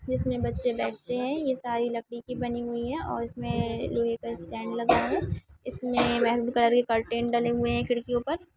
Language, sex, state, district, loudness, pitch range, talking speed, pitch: Hindi, female, Maharashtra, Pune, -28 LUFS, 225-245 Hz, 190 wpm, 235 Hz